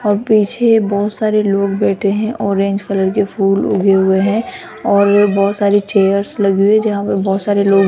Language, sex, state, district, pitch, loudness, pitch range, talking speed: Hindi, female, Rajasthan, Jaipur, 200 Hz, -14 LUFS, 195-210 Hz, 200 wpm